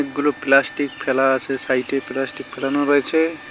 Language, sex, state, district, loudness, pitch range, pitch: Bengali, male, West Bengal, Cooch Behar, -20 LUFS, 135-145 Hz, 135 Hz